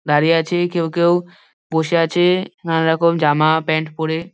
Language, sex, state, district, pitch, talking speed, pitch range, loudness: Bengali, male, West Bengal, Dakshin Dinajpur, 165 Hz, 140 wpm, 160-175 Hz, -17 LUFS